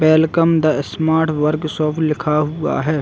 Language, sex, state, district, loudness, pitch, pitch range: Hindi, male, Chhattisgarh, Bilaspur, -17 LUFS, 155 Hz, 150-160 Hz